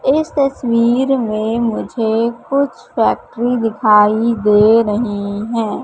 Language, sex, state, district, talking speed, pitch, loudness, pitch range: Hindi, female, Madhya Pradesh, Katni, 100 wpm, 230 Hz, -15 LUFS, 215-245 Hz